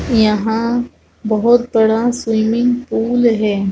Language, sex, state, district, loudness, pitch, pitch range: Hindi, female, Chhattisgarh, Rajnandgaon, -15 LUFS, 225 Hz, 220-240 Hz